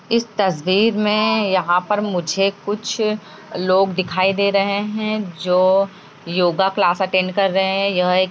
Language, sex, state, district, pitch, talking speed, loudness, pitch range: Hindi, female, Bihar, Jamui, 195 Hz, 165 wpm, -18 LUFS, 185-205 Hz